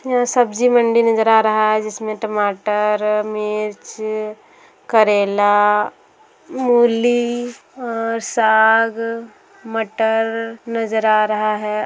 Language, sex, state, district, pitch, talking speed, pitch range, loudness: Hindi, female, Bihar, Sitamarhi, 220 Hz, 95 wpm, 215-235 Hz, -17 LUFS